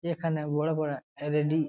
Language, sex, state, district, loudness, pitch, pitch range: Bengali, male, West Bengal, Jalpaiguri, -30 LUFS, 155 Hz, 150-160 Hz